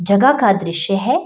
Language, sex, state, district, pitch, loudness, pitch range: Hindi, female, Bihar, Jahanabad, 200 Hz, -15 LUFS, 195-255 Hz